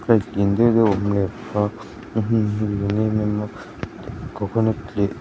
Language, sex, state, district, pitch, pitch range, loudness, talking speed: Mizo, male, Mizoram, Aizawl, 105 Hz, 100-110 Hz, -21 LUFS, 205 wpm